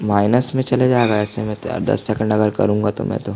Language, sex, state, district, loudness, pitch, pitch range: Hindi, male, Chhattisgarh, Jashpur, -18 LUFS, 105 Hz, 105-120 Hz